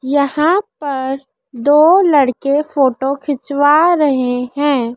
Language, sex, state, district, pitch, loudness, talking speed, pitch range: Hindi, female, Madhya Pradesh, Dhar, 285 Hz, -14 LUFS, 95 wpm, 265-300 Hz